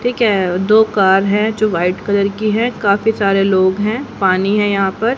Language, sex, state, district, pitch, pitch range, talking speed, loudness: Hindi, female, Haryana, Jhajjar, 200 Hz, 195-220 Hz, 210 wpm, -14 LUFS